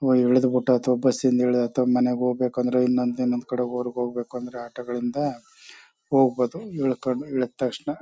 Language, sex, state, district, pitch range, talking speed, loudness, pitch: Kannada, male, Karnataka, Chamarajanagar, 125-130 Hz, 140 wpm, -24 LUFS, 125 Hz